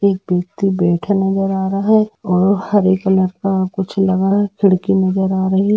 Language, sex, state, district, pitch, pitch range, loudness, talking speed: Hindi, female, Jharkhand, Jamtara, 190 Hz, 190-195 Hz, -16 LUFS, 195 wpm